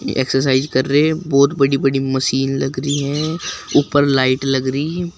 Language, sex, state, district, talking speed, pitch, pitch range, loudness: Hindi, male, Uttar Pradesh, Shamli, 185 wpm, 135 Hz, 135-145 Hz, -17 LUFS